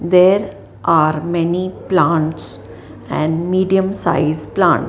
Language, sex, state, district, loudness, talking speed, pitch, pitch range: English, female, Maharashtra, Mumbai Suburban, -16 LUFS, 100 wpm, 170 Hz, 155-185 Hz